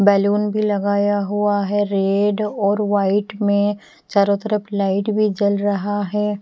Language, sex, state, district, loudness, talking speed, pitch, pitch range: Hindi, female, Punjab, Pathankot, -19 LUFS, 150 wpm, 205 Hz, 200-210 Hz